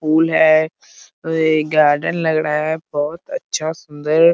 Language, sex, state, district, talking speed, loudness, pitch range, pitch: Hindi, male, Bihar, Muzaffarpur, 140 wpm, -17 LUFS, 155-160 Hz, 155 Hz